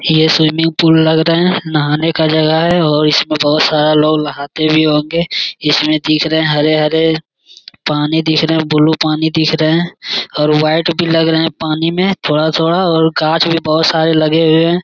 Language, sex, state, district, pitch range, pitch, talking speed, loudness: Hindi, male, Bihar, Jamui, 155-165 Hz, 160 Hz, 190 wpm, -12 LUFS